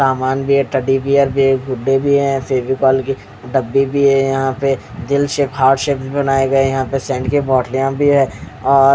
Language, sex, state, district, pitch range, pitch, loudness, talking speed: Hindi, male, Odisha, Khordha, 130-140 Hz, 135 Hz, -15 LUFS, 200 wpm